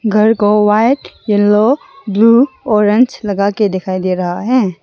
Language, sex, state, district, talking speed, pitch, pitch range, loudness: Hindi, female, Arunachal Pradesh, Longding, 150 wpm, 210 Hz, 205-235 Hz, -13 LUFS